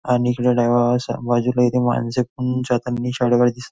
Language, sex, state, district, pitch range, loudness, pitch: Marathi, male, Maharashtra, Nagpur, 120-125 Hz, -19 LUFS, 125 Hz